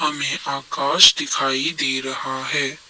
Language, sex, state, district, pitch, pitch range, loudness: Hindi, male, Assam, Kamrup Metropolitan, 135 Hz, 130-140 Hz, -18 LUFS